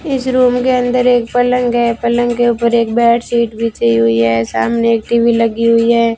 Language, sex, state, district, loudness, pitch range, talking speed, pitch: Hindi, female, Rajasthan, Bikaner, -13 LUFS, 230-245 Hz, 195 wpm, 235 Hz